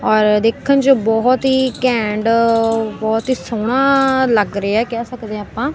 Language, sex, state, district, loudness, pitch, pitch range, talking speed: Punjabi, female, Punjab, Kapurthala, -15 LUFS, 230 Hz, 220-260 Hz, 155 wpm